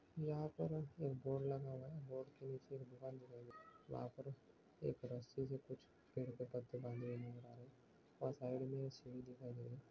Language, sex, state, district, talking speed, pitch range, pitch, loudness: Hindi, male, Chhattisgarh, Bastar, 225 wpm, 125-135 Hz, 130 Hz, -49 LUFS